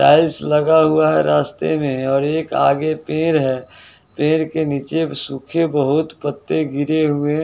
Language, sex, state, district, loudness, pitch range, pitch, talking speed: Hindi, male, Bihar, West Champaran, -18 LUFS, 140-155 Hz, 150 Hz, 155 wpm